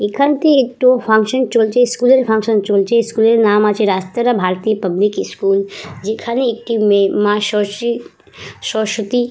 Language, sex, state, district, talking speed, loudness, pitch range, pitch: Bengali, female, West Bengal, Purulia, 135 wpm, -15 LUFS, 205-240 Hz, 220 Hz